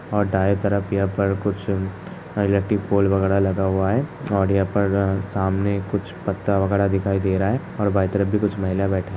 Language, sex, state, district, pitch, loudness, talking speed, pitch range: Hindi, male, Uttar Pradesh, Hamirpur, 100 Hz, -21 LUFS, 195 wpm, 95-100 Hz